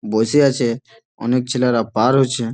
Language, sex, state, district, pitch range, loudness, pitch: Bengali, male, West Bengal, Malda, 115-130 Hz, -17 LUFS, 120 Hz